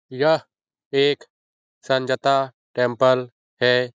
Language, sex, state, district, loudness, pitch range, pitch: Hindi, male, Bihar, Jahanabad, -21 LUFS, 125-140 Hz, 130 Hz